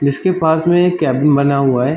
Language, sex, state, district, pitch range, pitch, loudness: Hindi, male, Bihar, Darbhanga, 140-170 Hz, 150 Hz, -14 LUFS